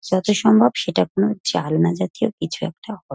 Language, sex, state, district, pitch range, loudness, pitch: Bengali, female, West Bengal, North 24 Parganas, 150-210 Hz, -19 LUFS, 190 Hz